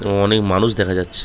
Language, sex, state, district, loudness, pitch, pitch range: Bengali, male, West Bengal, Kolkata, -17 LUFS, 100 Hz, 95-105 Hz